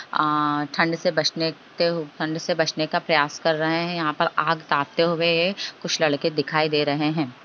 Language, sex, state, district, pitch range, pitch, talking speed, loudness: Hindi, female, Bihar, Begusarai, 150-170 Hz, 160 Hz, 185 wpm, -23 LUFS